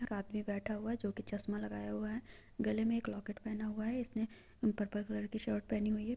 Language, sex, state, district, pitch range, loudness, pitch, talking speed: Hindi, female, Chhattisgarh, Kabirdham, 205-225 Hz, -39 LUFS, 215 Hz, 245 wpm